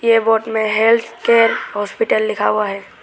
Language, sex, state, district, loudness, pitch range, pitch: Hindi, male, Arunachal Pradesh, Lower Dibang Valley, -16 LUFS, 215-230 Hz, 225 Hz